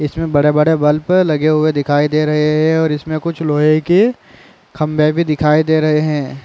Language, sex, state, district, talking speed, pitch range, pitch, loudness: Hindi, male, Chhattisgarh, Raigarh, 195 wpm, 150-160 Hz, 155 Hz, -14 LUFS